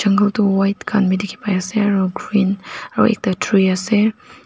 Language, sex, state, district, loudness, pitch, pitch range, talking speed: Nagamese, female, Nagaland, Dimapur, -18 LUFS, 200 Hz, 190-210 Hz, 190 wpm